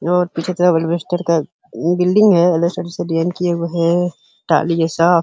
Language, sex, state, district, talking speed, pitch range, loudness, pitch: Hindi, male, Uttar Pradesh, Hamirpur, 70 wpm, 165-180 Hz, -16 LUFS, 175 Hz